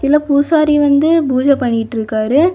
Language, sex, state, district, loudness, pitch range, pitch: Tamil, female, Tamil Nadu, Kanyakumari, -13 LUFS, 245-300 Hz, 285 Hz